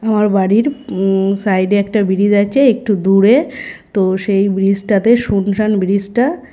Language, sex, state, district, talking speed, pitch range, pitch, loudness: Bengali, male, West Bengal, North 24 Parganas, 185 wpm, 195-230 Hz, 205 Hz, -14 LUFS